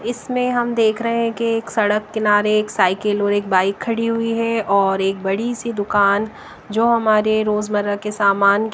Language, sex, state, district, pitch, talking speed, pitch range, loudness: Hindi, female, Bihar, West Champaran, 215 Hz, 185 wpm, 205-230 Hz, -18 LUFS